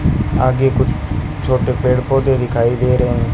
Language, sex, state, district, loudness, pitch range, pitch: Hindi, male, Rajasthan, Bikaner, -16 LUFS, 125-130 Hz, 125 Hz